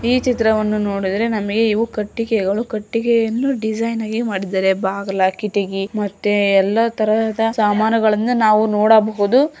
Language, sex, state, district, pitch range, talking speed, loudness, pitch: Kannada, female, Karnataka, Dharwad, 205-225 Hz, 85 wpm, -17 LUFS, 215 Hz